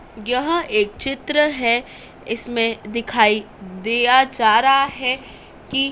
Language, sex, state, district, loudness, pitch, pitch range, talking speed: Hindi, female, Madhya Pradesh, Dhar, -18 LUFS, 240 Hz, 220-270 Hz, 110 wpm